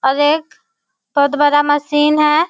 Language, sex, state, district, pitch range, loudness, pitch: Hindi, female, Bihar, Kishanganj, 285-305 Hz, -14 LUFS, 295 Hz